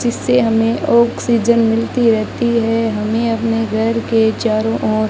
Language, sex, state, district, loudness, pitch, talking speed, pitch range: Hindi, female, Rajasthan, Bikaner, -15 LUFS, 225 Hz, 140 wpm, 225-235 Hz